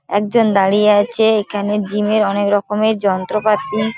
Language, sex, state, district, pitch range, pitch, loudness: Bengali, female, West Bengal, Paschim Medinipur, 205-215 Hz, 210 Hz, -15 LUFS